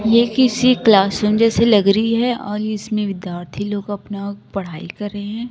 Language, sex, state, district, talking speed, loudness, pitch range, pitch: Hindi, female, Chhattisgarh, Raipur, 185 wpm, -18 LUFS, 200-230 Hz, 210 Hz